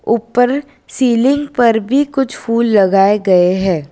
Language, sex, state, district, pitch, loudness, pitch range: Hindi, female, Gujarat, Valsad, 230 Hz, -13 LUFS, 195-260 Hz